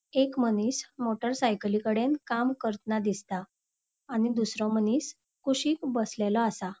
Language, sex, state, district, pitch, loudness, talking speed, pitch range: Konkani, female, Goa, North and South Goa, 230 Hz, -29 LUFS, 115 wpm, 215-260 Hz